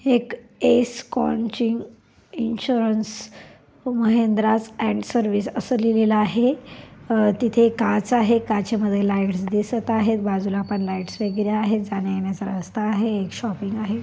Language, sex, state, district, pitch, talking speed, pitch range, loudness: Marathi, female, Maharashtra, Pune, 220 Hz, 130 wpm, 205-230 Hz, -22 LUFS